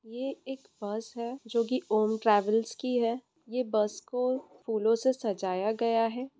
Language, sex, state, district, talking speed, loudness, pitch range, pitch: Hindi, female, Bihar, Jamui, 170 wpm, -30 LUFS, 215-255 Hz, 230 Hz